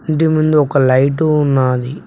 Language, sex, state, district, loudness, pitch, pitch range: Telugu, male, Telangana, Mahabubabad, -13 LUFS, 145 Hz, 130-155 Hz